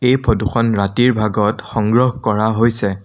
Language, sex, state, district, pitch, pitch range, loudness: Assamese, male, Assam, Sonitpur, 110 Hz, 105-120 Hz, -16 LUFS